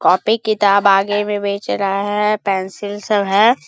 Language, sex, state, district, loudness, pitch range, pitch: Hindi, male, Bihar, Bhagalpur, -16 LUFS, 200-210 Hz, 205 Hz